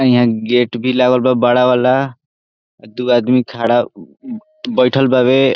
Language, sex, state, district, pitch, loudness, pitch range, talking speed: Bhojpuri, male, Bihar, Saran, 125 Hz, -14 LUFS, 120-130 Hz, 130 wpm